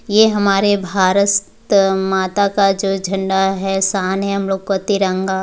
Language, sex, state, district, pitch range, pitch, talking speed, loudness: Hindi, female, Bihar, Muzaffarpur, 190-200 Hz, 195 Hz, 155 wpm, -16 LUFS